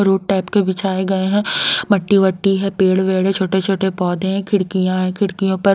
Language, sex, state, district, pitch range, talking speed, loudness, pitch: Hindi, female, Haryana, Rohtak, 190-195 Hz, 175 wpm, -17 LUFS, 190 Hz